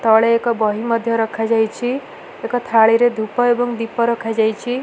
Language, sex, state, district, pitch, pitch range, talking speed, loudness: Odia, female, Odisha, Malkangiri, 230 Hz, 225-245 Hz, 135 wpm, -17 LUFS